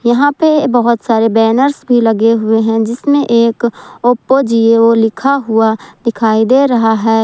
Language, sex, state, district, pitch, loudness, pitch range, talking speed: Hindi, female, Jharkhand, Ranchi, 230 Hz, -11 LUFS, 225-250 Hz, 155 wpm